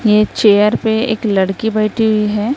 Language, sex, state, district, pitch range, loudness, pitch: Hindi, female, Maharashtra, Gondia, 210-220 Hz, -14 LUFS, 215 Hz